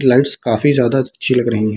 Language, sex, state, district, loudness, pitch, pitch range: Hindi, male, Bihar, Samastipur, -15 LUFS, 125 Hz, 115-135 Hz